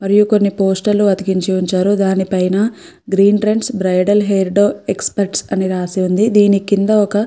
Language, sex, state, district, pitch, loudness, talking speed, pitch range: Telugu, female, Andhra Pradesh, Guntur, 200 Hz, -14 LUFS, 165 wpm, 190-205 Hz